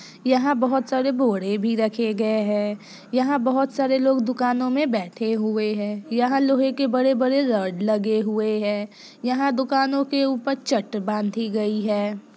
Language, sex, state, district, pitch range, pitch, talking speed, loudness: Hindi, female, Bihar, East Champaran, 215-265 Hz, 235 Hz, 165 wpm, -22 LUFS